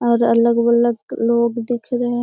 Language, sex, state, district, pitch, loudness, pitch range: Hindi, female, Bihar, Jamui, 235 Hz, -17 LUFS, 235-240 Hz